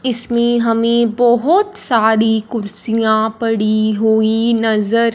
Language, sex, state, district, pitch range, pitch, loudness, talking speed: Hindi, male, Punjab, Fazilka, 220-235 Hz, 230 Hz, -14 LUFS, 95 wpm